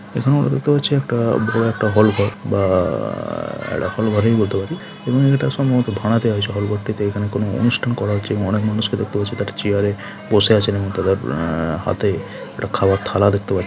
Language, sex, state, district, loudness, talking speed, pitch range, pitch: Bengali, male, West Bengal, Jhargram, -19 LUFS, 200 wpm, 100-115 Hz, 105 Hz